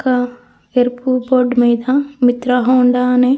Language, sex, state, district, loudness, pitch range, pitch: Telugu, female, Andhra Pradesh, Krishna, -15 LUFS, 245-255 Hz, 250 Hz